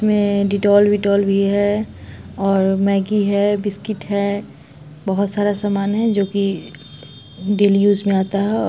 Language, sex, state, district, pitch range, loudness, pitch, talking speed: Hindi, female, Bihar, Muzaffarpur, 195-205 Hz, -17 LUFS, 200 Hz, 160 wpm